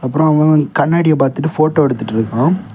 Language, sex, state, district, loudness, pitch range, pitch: Tamil, male, Tamil Nadu, Kanyakumari, -14 LUFS, 130-155 Hz, 155 Hz